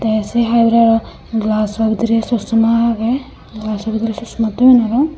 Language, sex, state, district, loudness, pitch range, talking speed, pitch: Chakma, female, Tripura, Unakoti, -15 LUFS, 220-235 Hz, 160 wpm, 225 Hz